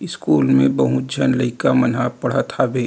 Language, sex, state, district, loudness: Chhattisgarhi, male, Chhattisgarh, Rajnandgaon, -18 LUFS